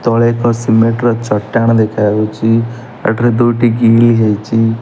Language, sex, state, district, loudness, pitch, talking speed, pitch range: Odia, male, Odisha, Nuapada, -12 LUFS, 115 Hz, 125 wpm, 110-120 Hz